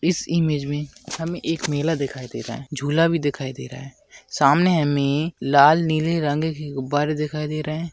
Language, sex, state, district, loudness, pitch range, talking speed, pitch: Hindi, male, Maharashtra, Aurangabad, -22 LUFS, 140-165 Hz, 195 wpm, 150 Hz